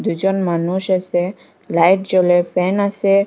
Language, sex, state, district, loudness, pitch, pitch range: Bengali, female, Assam, Hailakandi, -17 LUFS, 185 Hz, 175-195 Hz